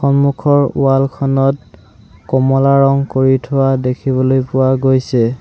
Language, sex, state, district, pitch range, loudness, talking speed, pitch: Assamese, male, Assam, Sonitpur, 130-135 Hz, -13 LUFS, 110 wpm, 135 Hz